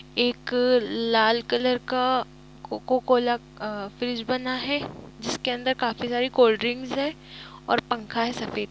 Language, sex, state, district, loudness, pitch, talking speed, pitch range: Hindi, female, Bihar, East Champaran, -25 LUFS, 245 Hz, 160 wpm, 230-255 Hz